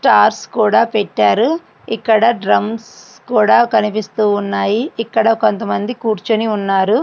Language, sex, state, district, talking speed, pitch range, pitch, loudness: Telugu, female, Andhra Pradesh, Srikakulam, 100 wpm, 205-225 Hz, 220 Hz, -15 LUFS